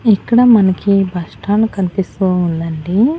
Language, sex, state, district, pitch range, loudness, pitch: Telugu, female, Andhra Pradesh, Annamaya, 180-215 Hz, -14 LUFS, 195 Hz